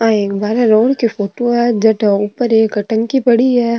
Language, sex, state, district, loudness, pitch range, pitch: Rajasthani, female, Rajasthan, Nagaur, -14 LUFS, 215-240 Hz, 225 Hz